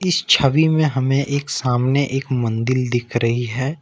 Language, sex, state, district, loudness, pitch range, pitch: Hindi, male, Jharkhand, Ranchi, -18 LUFS, 125-140 Hz, 135 Hz